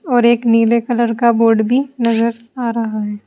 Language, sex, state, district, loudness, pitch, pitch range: Hindi, female, Uttar Pradesh, Saharanpur, -15 LUFS, 235 Hz, 230-240 Hz